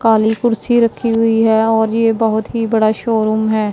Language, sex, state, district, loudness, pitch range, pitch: Hindi, female, Punjab, Pathankot, -14 LUFS, 220-230 Hz, 225 Hz